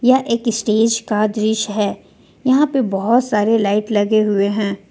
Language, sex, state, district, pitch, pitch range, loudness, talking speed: Hindi, female, Jharkhand, Ranchi, 215 Hz, 210-230 Hz, -17 LUFS, 170 wpm